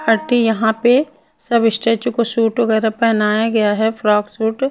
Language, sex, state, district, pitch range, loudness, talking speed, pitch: Hindi, female, Punjab, Kapurthala, 220-235 Hz, -16 LUFS, 180 wpm, 225 Hz